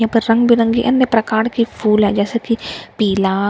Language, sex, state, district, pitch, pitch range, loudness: Hindi, female, Bihar, Katihar, 225 Hz, 210-235 Hz, -15 LUFS